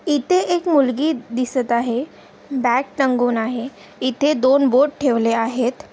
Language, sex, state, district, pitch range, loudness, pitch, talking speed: Marathi, female, Maharashtra, Aurangabad, 240-285 Hz, -19 LUFS, 260 Hz, 130 wpm